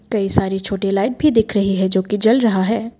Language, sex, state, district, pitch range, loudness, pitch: Hindi, female, Assam, Kamrup Metropolitan, 195-225 Hz, -17 LUFS, 205 Hz